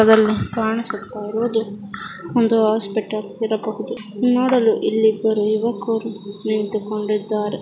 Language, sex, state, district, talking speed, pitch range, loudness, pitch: Kannada, female, Karnataka, Mysore, 95 wpm, 215-225 Hz, -20 LUFS, 220 Hz